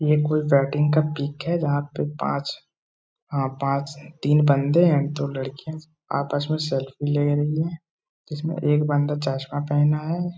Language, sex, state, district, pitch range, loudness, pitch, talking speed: Hindi, male, Uttar Pradesh, Etah, 140-155 Hz, -23 LUFS, 145 Hz, 160 wpm